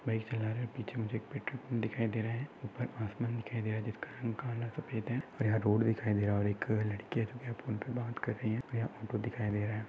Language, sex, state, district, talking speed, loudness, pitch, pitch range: Hindi, male, Maharashtra, Nagpur, 260 wpm, -36 LUFS, 115 Hz, 110-120 Hz